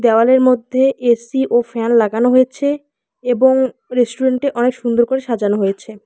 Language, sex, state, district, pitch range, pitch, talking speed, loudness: Bengali, female, West Bengal, Alipurduar, 230-260 Hz, 245 Hz, 140 wpm, -15 LUFS